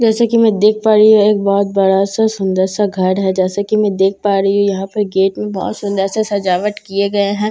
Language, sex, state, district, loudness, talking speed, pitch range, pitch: Hindi, female, Bihar, Katihar, -14 LUFS, 270 wpm, 195-210 Hz, 200 Hz